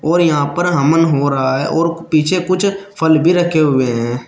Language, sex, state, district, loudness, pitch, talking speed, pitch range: Hindi, male, Uttar Pradesh, Shamli, -14 LUFS, 160 Hz, 210 wpm, 140-175 Hz